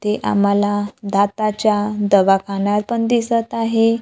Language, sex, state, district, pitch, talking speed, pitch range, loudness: Marathi, female, Maharashtra, Gondia, 210 Hz, 105 wpm, 200-225 Hz, -17 LUFS